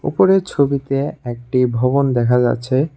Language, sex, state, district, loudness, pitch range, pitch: Bengali, male, Tripura, West Tripura, -17 LUFS, 120-140 Hz, 130 Hz